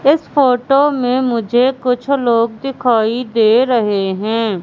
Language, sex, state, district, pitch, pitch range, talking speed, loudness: Hindi, female, Madhya Pradesh, Katni, 245 Hz, 225-265 Hz, 130 wpm, -14 LUFS